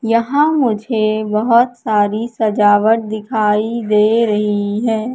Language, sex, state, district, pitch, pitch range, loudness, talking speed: Hindi, female, Madhya Pradesh, Katni, 220 Hz, 210-230 Hz, -15 LUFS, 105 wpm